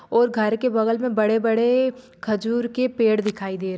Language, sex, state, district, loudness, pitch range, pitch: Hindi, female, Maharashtra, Sindhudurg, -21 LUFS, 215-245 Hz, 225 Hz